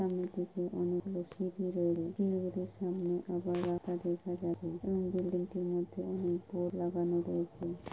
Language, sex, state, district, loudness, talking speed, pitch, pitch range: Bengali, female, West Bengal, Purulia, -36 LUFS, 55 wpm, 180 Hz, 175-185 Hz